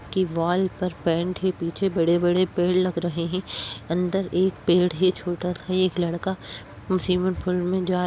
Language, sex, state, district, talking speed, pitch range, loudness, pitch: Hindi, female, Uttar Pradesh, Jyotiba Phule Nagar, 185 wpm, 175-185 Hz, -24 LUFS, 180 Hz